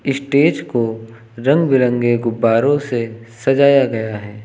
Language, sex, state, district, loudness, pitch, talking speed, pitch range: Hindi, male, Uttar Pradesh, Lucknow, -16 LUFS, 120 Hz, 120 wpm, 115-140 Hz